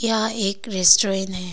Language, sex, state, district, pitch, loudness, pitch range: Hindi, female, Arunachal Pradesh, Longding, 195 Hz, -19 LUFS, 190-220 Hz